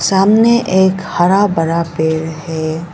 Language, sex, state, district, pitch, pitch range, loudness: Hindi, female, Arunachal Pradesh, Lower Dibang Valley, 170 Hz, 160-190 Hz, -13 LUFS